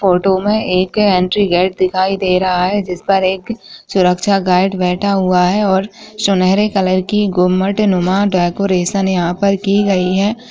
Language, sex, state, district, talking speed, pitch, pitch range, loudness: Hindi, female, Chhattisgarh, Sukma, 160 wpm, 190 Hz, 185-200 Hz, -14 LUFS